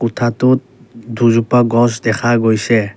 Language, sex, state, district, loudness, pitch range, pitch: Assamese, male, Assam, Kamrup Metropolitan, -14 LUFS, 115-120 Hz, 120 Hz